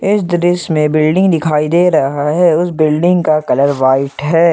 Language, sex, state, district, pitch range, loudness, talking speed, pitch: Hindi, male, Jharkhand, Ranchi, 150-175 Hz, -12 LUFS, 185 wpm, 160 Hz